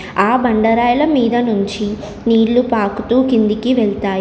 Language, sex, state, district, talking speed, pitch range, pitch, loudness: Telugu, female, Telangana, Komaram Bheem, 130 wpm, 210-240 Hz, 225 Hz, -15 LUFS